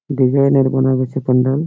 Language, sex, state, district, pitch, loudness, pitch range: Bengali, male, West Bengal, Malda, 130 Hz, -15 LUFS, 130-135 Hz